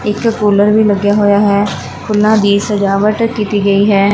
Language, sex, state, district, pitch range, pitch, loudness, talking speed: Punjabi, female, Punjab, Fazilka, 200-210 Hz, 205 Hz, -12 LUFS, 175 wpm